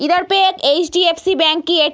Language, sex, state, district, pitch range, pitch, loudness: Hindi, female, Uttar Pradesh, Deoria, 320-365 Hz, 340 Hz, -14 LUFS